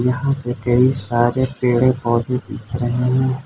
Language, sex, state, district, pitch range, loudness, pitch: Hindi, male, Arunachal Pradesh, Lower Dibang Valley, 120-130 Hz, -18 LUFS, 125 Hz